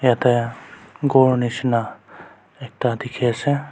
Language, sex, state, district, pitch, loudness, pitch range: Nagamese, male, Nagaland, Kohima, 125 Hz, -20 LUFS, 120-130 Hz